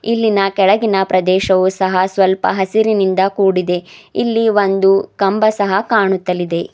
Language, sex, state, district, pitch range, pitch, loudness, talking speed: Kannada, female, Karnataka, Bidar, 190-205 Hz, 195 Hz, -14 LUFS, 105 wpm